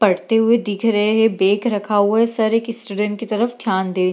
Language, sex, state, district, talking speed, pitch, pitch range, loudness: Hindi, female, Bihar, Gaya, 260 wpm, 215 Hz, 205-230 Hz, -18 LUFS